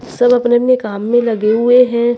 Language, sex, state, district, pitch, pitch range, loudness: Hindi, female, Chhattisgarh, Raipur, 240 Hz, 230-245 Hz, -13 LUFS